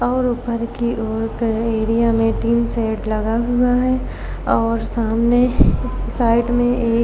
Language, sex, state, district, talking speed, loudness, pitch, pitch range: Hindi, female, Maharashtra, Chandrapur, 145 wpm, -19 LUFS, 235 Hz, 225-240 Hz